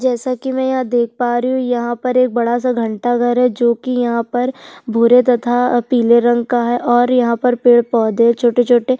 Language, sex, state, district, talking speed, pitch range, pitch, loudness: Hindi, female, Chhattisgarh, Sukma, 215 wpm, 235-250 Hz, 245 Hz, -15 LUFS